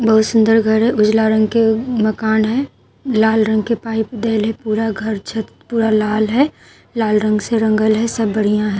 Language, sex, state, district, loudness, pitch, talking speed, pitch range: Maithili, female, Bihar, Katihar, -16 LUFS, 220 Hz, 195 wpm, 215-225 Hz